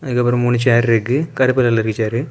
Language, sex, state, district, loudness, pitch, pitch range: Tamil, male, Tamil Nadu, Kanyakumari, -16 LUFS, 120 Hz, 115-130 Hz